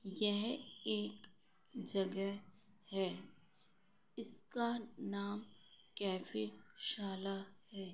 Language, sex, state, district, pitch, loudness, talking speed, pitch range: Hindi, female, Uttar Pradesh, Gorakhpur, 195 Hz, -42 LUFS, 60 wpm, 190-205 Hz